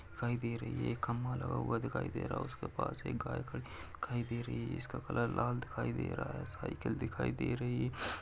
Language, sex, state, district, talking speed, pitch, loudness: Hindi, male, Uttar Pradesh, Varanasi, 240 wpm, 115 Hz, -39 LUFS